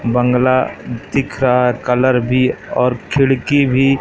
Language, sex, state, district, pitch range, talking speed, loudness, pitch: Hindi, male, Madhya Pradesh, Katni, 125-135 Hz, 135 wpm, -15 LUFS, 130 Hz